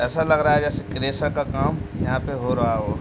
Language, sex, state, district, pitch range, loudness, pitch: Hindi, male, Uttar Pradesh, Deoria, 120-145 Hz, -22 LUFS, 135 Hz